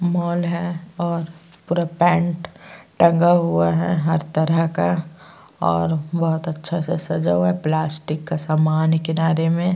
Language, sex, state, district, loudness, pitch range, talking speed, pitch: Hindi, female, Uttar Pradesh, Jyotiba Phule Nagar, -20 LUFS, 155-170 Hz, 155 wpm, 165 Hz